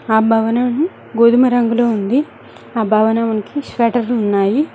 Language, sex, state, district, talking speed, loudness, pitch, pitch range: Telugu, female, Telangana, Mahabubabad, 125 wpm, -15 LUFS, 235 Hz, 220-245 Hz